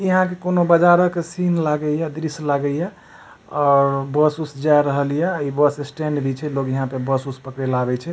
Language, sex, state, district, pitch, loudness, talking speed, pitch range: Maithili, male, Bihar, Supaul, 150 Hz, -20 LUFS, 215 wpm, 140-170 Hz